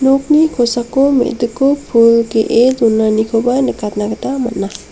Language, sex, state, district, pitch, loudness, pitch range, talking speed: Garo, female, Meghalaya, West Garo Hills, 240 Hz, -13 LUFS, 225-265 Hz, 110 wpm